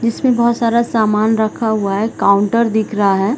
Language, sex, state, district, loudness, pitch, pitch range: Hindi, female, Chhattisgarh, Bilaspur, -15 LUFS, 220 Hz, 210-235 Hz